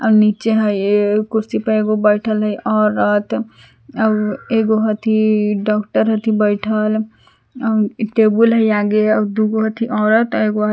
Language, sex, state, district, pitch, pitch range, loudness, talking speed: Magahi, female, Jharkhand, Palamu, 215 Hz, 210-220 Hz, -16 LUFS, 140 wpm